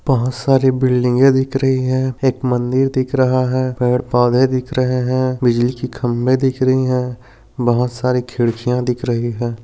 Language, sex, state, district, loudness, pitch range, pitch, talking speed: Hindi, male, Maharashtra, Aurangabad, -17 LUFS, 125-130 Hz, 125 Hz, 175 wpm